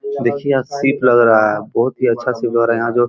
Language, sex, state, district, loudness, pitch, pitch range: Hindi, male, Uttar Pradesh, Muzaffarnagar, -15 LUFS, 120 Hz, 115-135 Hz